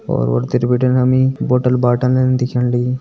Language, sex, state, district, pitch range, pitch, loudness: Hindi, male, Uttarakhand, Tehri Garhwal, 125-130 Hz, 125 Hz, -15 LUFS